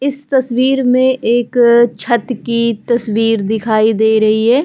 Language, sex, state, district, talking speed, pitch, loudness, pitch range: Hindi, female, Chhattisgarh, Kabirdham, 165 wpm, 235 Hz, -13 LUFS, 220-255 Hz